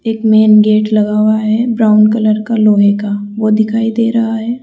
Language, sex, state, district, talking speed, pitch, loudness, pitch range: Hindi, female, Rajasthan, Jaipur, 205 wpm, 215 Hz, -11 LUFS, 215-225 Hz